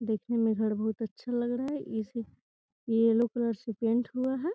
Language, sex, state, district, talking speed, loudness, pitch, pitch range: Hindi, female, Bihar, Gopalganj, 200 wpm, -30 LUFS, 230 Hz, 225-245 Hz